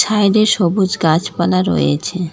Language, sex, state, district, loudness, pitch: Bengali, female, West Bengal, Alipurduar, -15 LUFS, 180 Hz